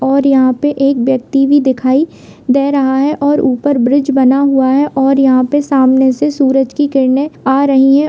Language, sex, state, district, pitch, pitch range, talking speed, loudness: Hindi, female, Bihar, Begusarai, 275 Hz, 265-285 Hz, 200 wpm, -11 LUFS